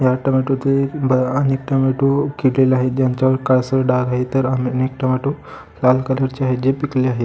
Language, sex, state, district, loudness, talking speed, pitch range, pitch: Marathi, male, Maharashtra, Pune, -18 LUFS, 165 wpm, 130-135 Hz, 130 Hz